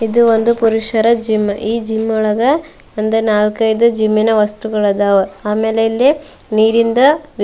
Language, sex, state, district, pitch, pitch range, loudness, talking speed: Kannada, female, Karnataka, Dharwad, 220 Hz, 215-235 Hz, -14 LUFS, 130 wpm